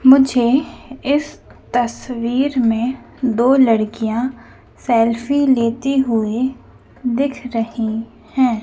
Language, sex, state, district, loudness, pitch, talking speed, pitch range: Hindi, female, Madhya Pradesh, Dhar, -18 LUFS, 245 Hz, 85 wpm, 230-265 Hz